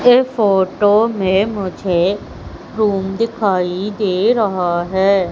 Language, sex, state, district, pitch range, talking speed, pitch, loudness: Hindi, male, Madhya Pradesh, Umaria, 185-215 Hz, 100 wpm, 195 Hz, -16 LUFS